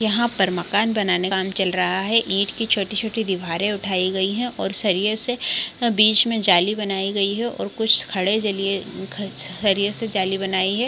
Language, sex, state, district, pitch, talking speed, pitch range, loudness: Hindi, female, Chhattisgarh, Bilaspur, 200 Hz, 195 wpm, 190-220 Hz, -20 LUFS